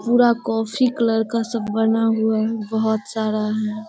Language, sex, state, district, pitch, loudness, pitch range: Hindi, female, Bihar, Sitamarhi, 225 Hz, -20 LUFS, 220-230 Hz